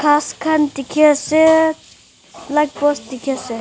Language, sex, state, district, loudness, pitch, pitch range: Nagamese, female, Nagaland, Dimapur, -16 LUFS, 295 Hz, 280-315 Hz